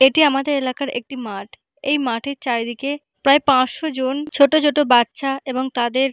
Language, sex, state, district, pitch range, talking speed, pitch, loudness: Bengali, female, West Bengal, Paschim Medinipur, 255-285 Hz, 155 wpm, 270 Hz, -19 LUFS